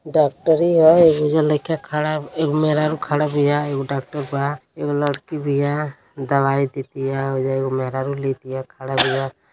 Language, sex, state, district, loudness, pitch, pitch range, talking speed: Bhojpuri, male, Uttar Pradesh, Deoria, -20 LUFS, 145 Hz, 135-150 Hz, 150 wpm